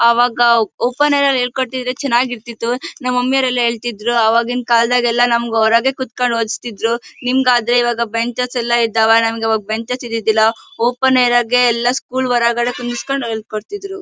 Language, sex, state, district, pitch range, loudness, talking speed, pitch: Kannada, female, Karnataka, Bellary, 230-250 Hz, -16 LUFS, 135 wpm, 240 Hz